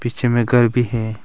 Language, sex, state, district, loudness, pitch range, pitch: Hindi, male, Arunachal Pradesh, Longding, -17 LUFS, 115-120 Hz, 120 Hz